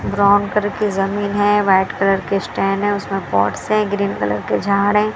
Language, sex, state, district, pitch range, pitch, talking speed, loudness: Hindi, female, Maharashtra, Mumbai Suburban, 195-205 Hz, 200 Hz, 200 wpm, -17 LUFS